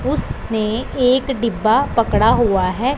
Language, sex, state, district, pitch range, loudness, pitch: Hindi, female, Punjab, Pathankot, 215-250 Hz, -17 LUFS, 230 Hz